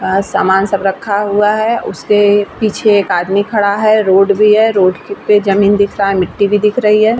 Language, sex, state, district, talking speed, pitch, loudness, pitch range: Hindi, female, Bihar, Vaishali, 240 wpm, 205 Hz, -12 LUFS, 195-210 Hz